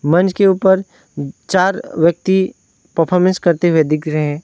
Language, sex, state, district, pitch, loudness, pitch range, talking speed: Hindi, male, West Bengal, Alipurduar, 175 Hz, -15 LUFS, 160-190 Hz, 150 wpm